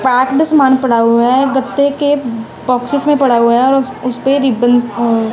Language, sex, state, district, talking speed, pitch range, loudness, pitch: Hindi, female, Punjab, Kapurthala, 200 wpm, 240-275 Hz, -12 LUFS, 260 Hz